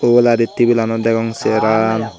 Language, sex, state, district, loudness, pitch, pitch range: Chakma, male, Tripura, Dhalai, -15 LUFS, 115 Hz, 110-120 Hz